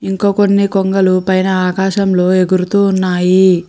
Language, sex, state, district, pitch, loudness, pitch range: Telugu, female, Andhra Pradesh, Guntur, 190 Hz, -12 LUFS, 185-195 Hz